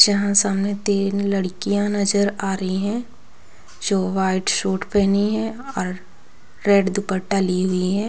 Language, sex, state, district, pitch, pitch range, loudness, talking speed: Hindi, female, Bihar, Begusarai, 200 Hz, 190-205 Hz, -20 LUFS, 140 wpm